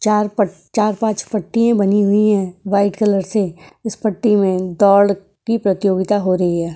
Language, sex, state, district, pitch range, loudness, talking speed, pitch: Hindi, female, Uttar Pradesh, Etah, 190-215 Hz, -16 LUFS, 180 wpm, 200 Hz